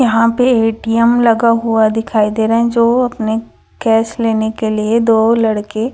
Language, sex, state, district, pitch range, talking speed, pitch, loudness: Hindi, female, Chhattisgarh, Raipur, 220-230 Hz, 170 wpm, 225 Hz, -13 LUFS